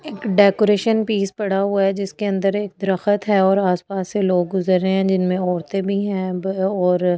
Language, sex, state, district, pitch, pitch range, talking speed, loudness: Hindi, female, Delhi, New Delhi, 195 Hz, 185-200 Hz, 210 wpm, -19 LUFS